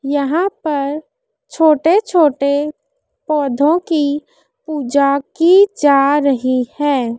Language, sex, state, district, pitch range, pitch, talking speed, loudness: Hindi, female, Madhya Pradesh, Dhar, 280-325 Hz, 295 Hz, 90 wpm, -15 LUFS